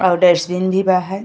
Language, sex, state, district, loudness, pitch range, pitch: Bhojpuri, female, Uttar Pradesh, Gorakhpur, -15 LUFS, 180-190 Hz, 185 Hz